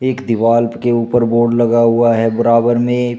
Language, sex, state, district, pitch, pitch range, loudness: Hindi, male, Uttar Pradesh, Shamli, 120 Hz, 115-120 Hz, -13 LUFS